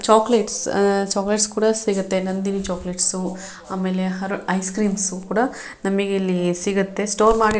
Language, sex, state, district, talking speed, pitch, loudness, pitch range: Kannada, female, Karnataka, Shimoga, 150 wpm, 195 Hz, -21 LUFS, 185-215 Hz